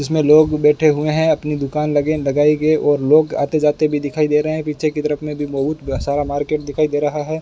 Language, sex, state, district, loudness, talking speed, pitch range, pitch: Hindi, male, Rajasthan, Bikaner, -17 LUFS, 250 wpm, 145-155 Hz, 150 Hz